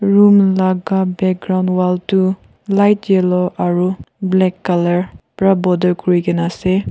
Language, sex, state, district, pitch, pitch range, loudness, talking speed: Nagamese, female, Nagaland, Kohima, 185 Hz, 180-195 Hz, -15 LUFS, 130 wpm